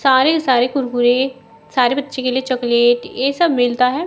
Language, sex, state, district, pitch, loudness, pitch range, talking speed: Hindi, female, Bihar, Kaimur, 255 Hz, -16 LUFS, 245-275 Hz, 175 wpm